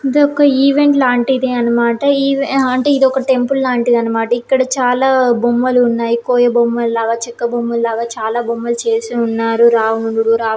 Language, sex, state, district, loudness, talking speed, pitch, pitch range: Telugu, female, Andhra Pradesh, Srikakulam, -14 LUFS, 150 wpm, 240 Hz, 235-265 Hz